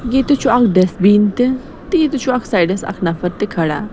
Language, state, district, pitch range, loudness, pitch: Kashmiri, Punjab, Kapurthala, 185-255 Hz, -15 LUFS, 210 Hz